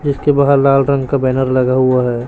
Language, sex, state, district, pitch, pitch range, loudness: Hindi, male, Chhattisgarh, Raipur, 135 Hz, 130-140 Hz, -13 LUFS